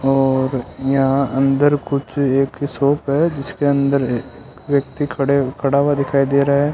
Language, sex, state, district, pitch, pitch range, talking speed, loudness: Hindi, male, Rajasthan, Bikaner, 140 Hz, 135-140 Hz, 150 wpm, -18 LUFS